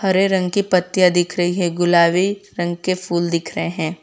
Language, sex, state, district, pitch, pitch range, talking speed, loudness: Hindi, female, Gujarat, Valsad, 175 Hz, 170-185 Hz, 210 wpm, -18 LUFS